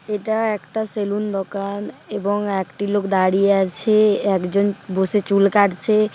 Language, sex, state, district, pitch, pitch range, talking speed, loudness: Bengali, female, West Bengal, Paschim Medinipur, 200 Hz, 195-210 Hz, 135 wpm, -20 LUFS